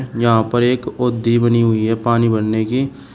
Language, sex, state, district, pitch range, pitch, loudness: Hindi, male, Uttar Pradesh, Shamli, 115-125 Hz, 115 Hz, -16 LUFS